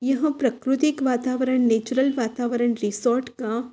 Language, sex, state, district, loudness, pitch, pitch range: Hindi, female, Uttar Pradesh, Hamirpur, -23 LUFS, 250 Hz, 240-265 Hz